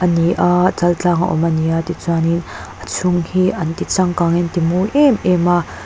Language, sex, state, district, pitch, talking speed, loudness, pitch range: Mizo, female, Mizoram, Aizawl, 175 Hz, 195 wpm, -16 LUFS, 165-180 Hz